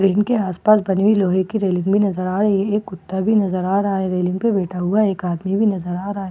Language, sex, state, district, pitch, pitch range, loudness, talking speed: Hindi, female, Bihar, Katihar, 195 Hz, 185-205 Hz, -19 LUFS, 285 wpm